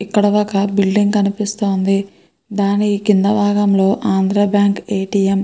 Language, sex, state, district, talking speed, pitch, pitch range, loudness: Telugu, female, Andhra Pradesh, Krishna, 145 wpm, 200 Hz, 195-205 Hz, -15 LUFS